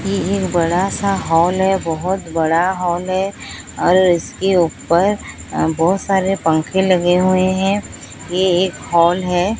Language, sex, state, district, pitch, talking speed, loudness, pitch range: Hindi, female, Odisha, Sambalpur, 185 Hz, 145 wpm, -16 LUFS, 175-190 Hz